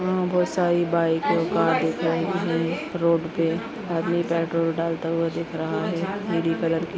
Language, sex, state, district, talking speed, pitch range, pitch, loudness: Hindi, male, Maharashtra, Nagpur, 180 wpm, 165-175 Hz, 170 Hz, -24 LUFS